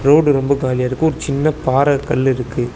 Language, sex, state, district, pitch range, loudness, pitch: Tamil, male, Tamil Nadu, Chennai, 130-145 Hz, -16 LUFS, 140 Hz